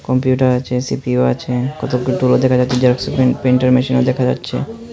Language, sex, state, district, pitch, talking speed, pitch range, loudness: Bengali, male, Tripura, Unakoti, 125 Hz, 170 wpm, 125-130 Hz, -16 LUFS